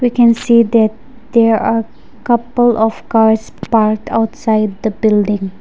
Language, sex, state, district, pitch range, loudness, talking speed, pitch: English, female, Nagaland, Dimapur, 220-235 Hz, -13 LUFS, 140 wpm, 225 Hz